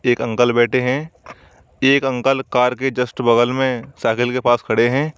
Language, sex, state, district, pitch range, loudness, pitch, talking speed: Hindi, male, Uttar Pradesh, Shamli, 120-135 Hz, -17 LUFS, 125 Hz, 185 wpm